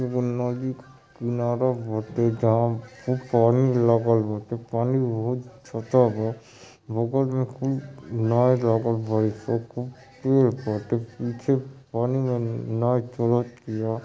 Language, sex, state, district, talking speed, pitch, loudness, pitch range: Bhojpuri, male, Uttar Pradesh, Ghazipur, 125 wpm, 120 Hz, -24 LUFS, 115-130 Hz